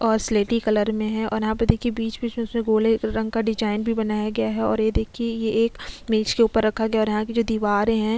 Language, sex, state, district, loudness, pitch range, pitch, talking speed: Hindi, female, Chhattisgarh, Sukma, -22 LUFS, 215-225 Hz, 220 Hz, 270 wpm